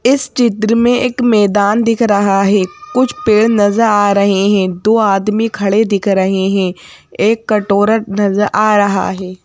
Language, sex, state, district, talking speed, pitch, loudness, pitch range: Hindi, female, Madhya Pradesh, Bhopal, 165 wpm, 210 Hz, -13 LUFS, 200-225 Hz